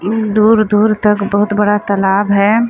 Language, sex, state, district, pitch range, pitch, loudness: Chhattisgarhi, female, Chhattisgarh, Sarguja, 200-215 Hz, 210 Hz, -12 LUFS